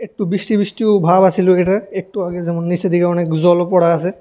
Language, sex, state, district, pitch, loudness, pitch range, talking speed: Bengali, male, Tripura, West Tripura, 185 Hz, -15 LUFS, 175-195 Hz, 215 wpm